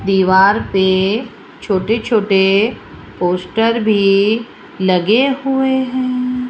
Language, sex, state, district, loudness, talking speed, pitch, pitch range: Hindi, female, Rajasthan, Jaipur, -15 LUFS, 85 wpm, 215 Hz, 195-245 Hz